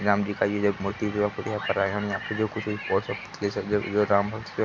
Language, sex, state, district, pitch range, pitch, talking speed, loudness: Hindi, male, Bihar, Araria, 100-105 Hz, 105 Hz, 245 wpm, -27 LUFS